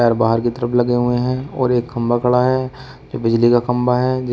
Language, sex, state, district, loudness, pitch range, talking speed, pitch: Hindi, male, Uttar Pradesh, Shamli, -17 LUFS, 120-125 Hz, 235 wpm, 120 Hz